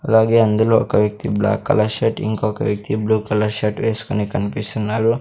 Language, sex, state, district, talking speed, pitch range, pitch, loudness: Telugu, male, Andhra Pradesh, Sri Satya Sai, 160 wpm, 105-115 Hz, 110 Hz, -18 LUFS